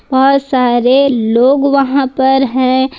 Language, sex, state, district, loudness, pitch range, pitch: Hindi, female, Jharkhand, Ranchi, -11 LUFS, 255-275 Hz, 265 Hz